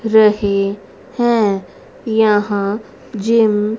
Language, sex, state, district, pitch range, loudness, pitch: Hindi, female, Haryana, Rohtak, 200-220 Hz, -16 LUFS, 210 Hz